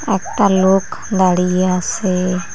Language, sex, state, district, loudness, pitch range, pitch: Bengali, female, West Bengal, Cooch Behar, -16 LUFS, 180-195 Hz, 185 Hz